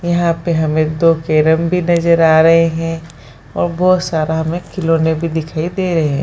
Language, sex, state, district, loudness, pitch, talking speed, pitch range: Hindi, female, Bihar, Jahanabad, -14 LUFS, 165 Hz, 185 wpm, 160-170 Hz